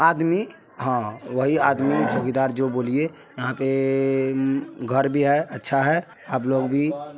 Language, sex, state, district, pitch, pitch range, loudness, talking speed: Maithili, male, Bihar, Supaul, 135 Hz, 130-150 Hz, -22 LUFS, 140 wpm